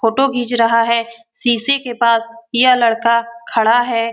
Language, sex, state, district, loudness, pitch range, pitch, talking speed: Hindi, female, Bihar, Lakhisarai, -15 LUFS, 230-245 Hz, 235 Hz, 160 wpm